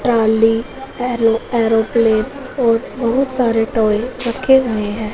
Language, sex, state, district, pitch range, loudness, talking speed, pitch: Hindi, female, Punjab, Fazilka, 225-250 Hz, -16 LUFS, 115 wpm, 230 Hz